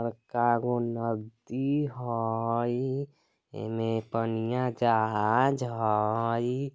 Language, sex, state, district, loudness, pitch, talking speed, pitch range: Bajjika, male, Bihar, Vaishali, -29 LUFS, 115 Hz, 80 wpm, 115-125 Hz